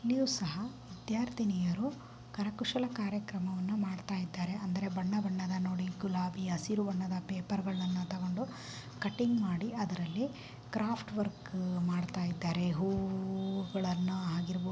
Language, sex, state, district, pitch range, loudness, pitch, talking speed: Kannada, female, Karnataka, Bijapur, 180-210 Hz, -36 LUFS, 190 Hz, 100 wpm